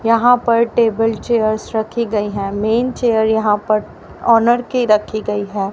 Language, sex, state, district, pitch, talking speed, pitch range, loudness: Hindi, female, Haryana, Rohtak, 220 Hz, 165 wpm, 210-235 Hz, -16 LUFS